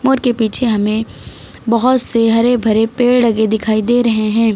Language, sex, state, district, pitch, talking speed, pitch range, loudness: Hindi, female, Uttar Pradesh, Lucknow, 230 Hz, 185 wpm, 220-245 Hz, -14 LUFS